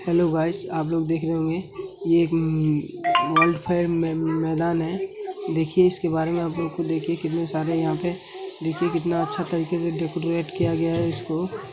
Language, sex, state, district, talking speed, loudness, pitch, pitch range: Hindi, female, Bihar, Gaya, 190 wpm, -24 LUFS, 170 Hz, 165-175 Hz